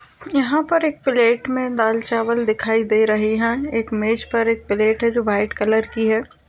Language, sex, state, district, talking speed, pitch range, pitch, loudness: Hindi, female, Uttar Pradesh, Jyotiba Phule Nagar, 205 wpm, 220-240 Hz, 230 Hz, -19 LUFS